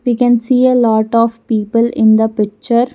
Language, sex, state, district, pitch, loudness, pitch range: English, female, Karnataka, Bangalore, 230 Hz, -13 LUFS, 220-245 Hz